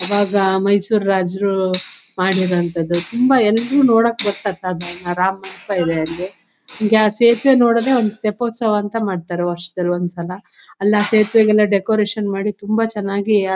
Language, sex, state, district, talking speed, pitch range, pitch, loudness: Kannada, female, Karnataka, Shimoga, 115 wpm, 185-220 Hz, 200 Hz, -17 LUFS